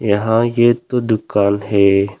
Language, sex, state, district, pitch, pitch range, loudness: Hindi, male, Arunachal Pradesh, Longding, 105 Hz, 100-115 Hz, -15 LUFS